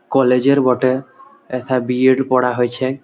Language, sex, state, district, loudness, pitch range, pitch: Bengali, male, West Bengal, Malda, -16 LUFS, 125-135 Hz, 130 Hz